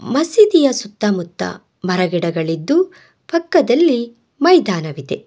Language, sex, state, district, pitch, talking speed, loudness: Kannada, female, Karnataka, Bangalore, 235 Hz, 70 wpm, -16 LUFS